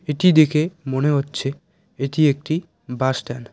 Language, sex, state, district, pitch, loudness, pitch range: Bengali, male, West Bengal, Cooch Behar, 145 Hz, -20 LUFS, 130-155 Hz